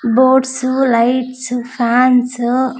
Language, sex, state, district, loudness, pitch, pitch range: Telugu, female, Andhra Pradesh, Sri Satya Sai, -14 LUFS, 255 Hz, 245-260 Hz